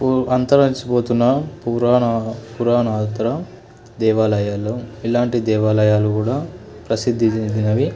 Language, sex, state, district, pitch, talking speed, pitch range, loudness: Telugu, male, Telangana, Nalgonda, 115 Hz, 75 wpm, 110-120 Hz, -18 LUFS